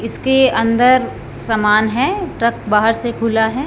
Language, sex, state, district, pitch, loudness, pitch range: Hindi, female, Punjab, Fazilka, 230 Hz, -15 LUFS, 225-255 Hz